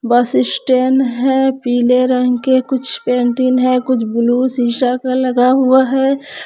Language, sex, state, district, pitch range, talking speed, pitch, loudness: Hindi, female, Jharkhand, Palamu, 245-260 Hz, 140 wpm, 255 Hz, -14 LUFS